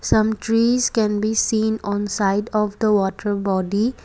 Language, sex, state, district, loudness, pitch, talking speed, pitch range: English, female, Assam, Kamrup Metropolitan, -20 LUFS, 215 Hz, 165 wpm, 205-220 Hz